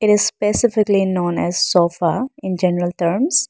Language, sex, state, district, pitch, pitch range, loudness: English, female, Arunachal Pradesh, Lower Dibang Valley, 195 Hz, 175-215 Hz, -18 LUFS